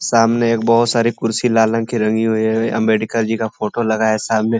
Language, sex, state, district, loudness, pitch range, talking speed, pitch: Hindi, male, Uttar Pradesh, Ghazipur, -16 LUFS, 110-115 Hz, 260 wpm, 115 Hz